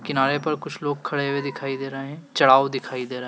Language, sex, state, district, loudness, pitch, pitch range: Hindi, male, Madhya Pradesh, Dhar, -23 LUFS, 140 Hz, 135-145 Hz